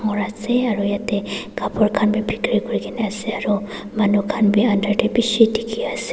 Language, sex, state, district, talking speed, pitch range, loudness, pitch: Nagamese, female, Nagaland, Dimapur, 165 wpm, 205-225 Hz, -20 LUFS, 215 Hz